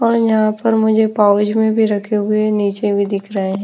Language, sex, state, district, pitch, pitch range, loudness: Hindi, female, Bihar, Patna, 215 Hz, 205-220 Hz, -15 LUFS